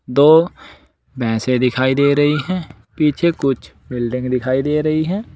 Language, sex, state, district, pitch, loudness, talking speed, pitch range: Hindi, male, Uttar Pradesh, Saharanpur, 140 Hz, -17 LUFS, 145 wpm, 125-155 Hz